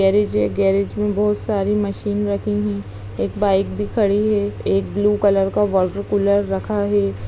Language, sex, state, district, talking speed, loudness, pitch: Hindi, female, Bihar, Darbhanga, 155 wpm, -19 LUFS, 195 Hz